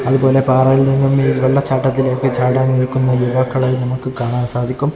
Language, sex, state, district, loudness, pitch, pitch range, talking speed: Malayalam, male, Kerala, Kozhikode, -15 LUFS, 130 Hz, 125-135 Hz, 120 wpm